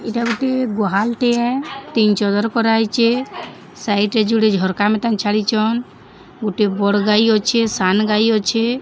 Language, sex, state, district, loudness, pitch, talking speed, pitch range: Odia, male, Odisha, Sambalpur, -17 LUFS, 220 Hz, 110 wpm, 210-235 Hz